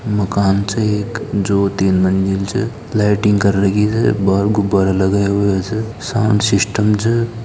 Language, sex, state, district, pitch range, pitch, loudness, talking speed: Marwari, male, Rajasthan, Nagaur, 100-110 Hz, 100 Hz, -16 LUFS, 155 wpm